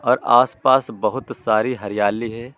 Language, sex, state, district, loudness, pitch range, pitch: Hindi, male, Uttar Pradesh, Lucknow, -19 LUFS, 105-120 Hz, 115 Hz